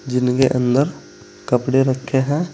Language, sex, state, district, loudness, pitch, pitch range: Hindi, male, Uttar Pradesh, Saharanpur, -18 LUFS, 130 Hz, 125-135 Hz